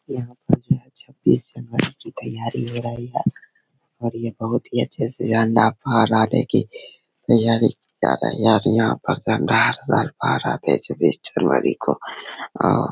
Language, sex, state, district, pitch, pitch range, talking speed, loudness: Hindi, male, Bihar, Begusarai, 120 Hz, 115-130 Hz, 165 wpm, -21 LUFS